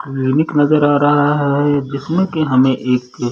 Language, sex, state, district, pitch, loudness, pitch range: Hindi, male, Chhattisgarh, Sarguja, 145 Hz, -15 LUFS, 130-150 Hz